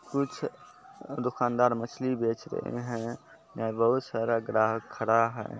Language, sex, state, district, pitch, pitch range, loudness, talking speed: Maithili, male, Bihar, Supaul, 115 Hz, 115-125 Hz, -29 LUFS, 130 wpm